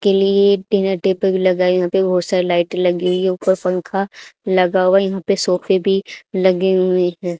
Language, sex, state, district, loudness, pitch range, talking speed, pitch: Hindi, female, Haryana, Charkhi Dadri, -16 LUFS, 180-195 Hz, 205 wpm, 185 Hz